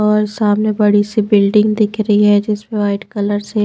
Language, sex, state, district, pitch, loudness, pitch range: Hindi, female, Maharashtra, Washim, 210 Hz, -14 LUFS, 205-215 Hz